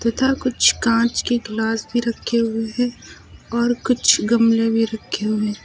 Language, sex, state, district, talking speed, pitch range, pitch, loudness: Hindi, female, Uttar Pradesh, Lucknow, 170 wpm, 225-240 Hz, 230 Hz, -19 LUFS